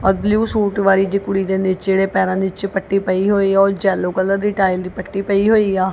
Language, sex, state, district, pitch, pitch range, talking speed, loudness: Punjabi, female, Punjab, Kapurthala, 195 Hz, 190-200 Hz, 255 wpm, -17 LUFS